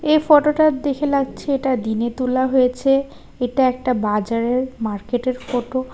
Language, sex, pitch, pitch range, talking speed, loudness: Bengali, female, 255 Hz, 245-275 Hz, 140 wpm, -19 LUFS